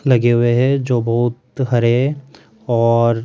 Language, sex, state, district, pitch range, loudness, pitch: Hindi, male, Rajasthan, Jaipur, 115-130 Hz, -16 LUFS, 120 Hz